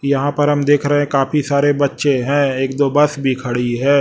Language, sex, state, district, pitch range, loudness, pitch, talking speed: Hindi, male, Chhattisgarh, Raipur, 135-145 Hz, -16 LUFS, 140 Hz, 240 wpm